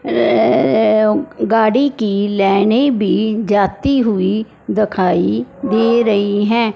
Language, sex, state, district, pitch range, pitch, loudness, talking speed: Hindi, female, Punjab, Fazilka, 200-225 Hz, 215 Hz, -15 LUFS, 100 wpm